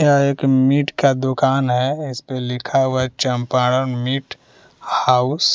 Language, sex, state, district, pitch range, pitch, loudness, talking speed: Hindi, male, Bihar, West Champaran, 125-135 Hz, 130 Hz, -18 LUFS, 160 wpm